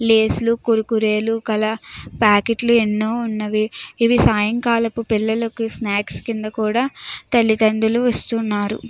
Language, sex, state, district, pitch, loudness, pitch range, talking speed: Telugu, female, Andhra Pradesh, Chittoor, 225 Hz, -19 LUFS, 215-230 Hz, 95 wpm